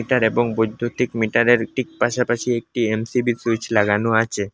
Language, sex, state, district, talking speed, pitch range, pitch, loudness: Bengali, male, Assam, Hailakandi, 145 wpm, 110-120 Hz, 115 Hz, -20 LUFS